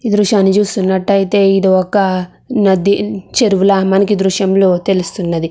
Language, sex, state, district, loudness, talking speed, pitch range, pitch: Telugu, female, Andhra Pradesh, Chittoor, -13 LUFS, 110 wpm, 190-205 Hz, 195 Hz